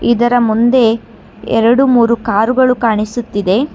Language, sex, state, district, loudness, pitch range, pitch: Kannada, female, Karnataka, Bangalore, -12 LUFS, 225-245 Hz, 235 Hz